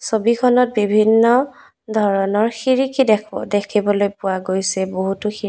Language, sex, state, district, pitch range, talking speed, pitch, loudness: Assamese, female, Assam, Kamrup Metropolitan, 200-235 Hz, 110 wpm, 215 Hz, -17 LUFS